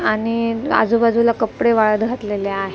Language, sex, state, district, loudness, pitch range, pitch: Marathi, female, Maharashtra, Mumbai Suburban, -17 LUFS, 215-230 Hz, 225 Hz